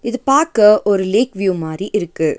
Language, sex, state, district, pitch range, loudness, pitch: Tamil, female, Tamil Nadu, Nilgiris, 190-230 Hz, -15 LUFS, 205 Hz